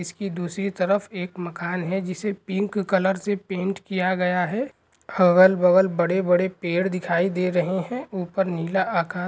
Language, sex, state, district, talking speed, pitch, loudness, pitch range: Hindi, male, Bihar, Saran, 170 wpm, 185 Hz, -23 LUFS, 180-195 Hz